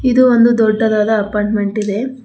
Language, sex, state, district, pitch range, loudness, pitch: Kannada, female, Karnataka, Bangalore, 210-240 Hz, -14 LUFS, 220 Hz